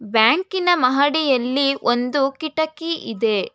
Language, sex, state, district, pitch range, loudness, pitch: Kannada, female, Karnataka, Bangalore, 240-315 Hz, -19 LUFS, 275 Hz